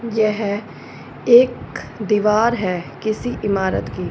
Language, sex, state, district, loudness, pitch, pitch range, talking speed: Hindi, female, Punjab, Fazilka, -19 LUFS, 215 Hz, 200-230 Hz, 100 wpm